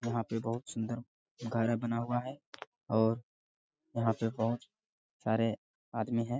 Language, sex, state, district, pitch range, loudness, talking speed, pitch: Hindi, male, Bihar, Jamui, 115-125 Hz, -35 LUFS, 130 wpm, 115 Hz